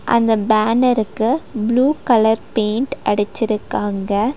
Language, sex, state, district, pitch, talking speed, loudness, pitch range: Tamil, female, Tamil Nadu, Nilgiris, 225 Hz, 95 wpm, -17 LUFS, 215-245 Hz